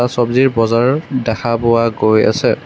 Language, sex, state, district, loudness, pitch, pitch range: Assamese, male, Assam, Kamrup Metropolitan, -14 LUFS, 115 Hz, 115-125 Hz